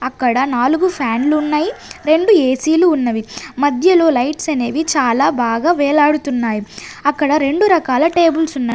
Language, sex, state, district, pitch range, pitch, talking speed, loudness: Telugu, female, Andhra Pradesh, Sri Satya Sai, 250-320 Hz, 290 Hz, 125 wpm, -15 LUFS